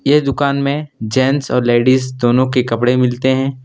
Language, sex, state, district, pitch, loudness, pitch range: Hindi, male, Jharkhand, Deoghar, 130 Hz, -15 LUFS, 125-140 Hz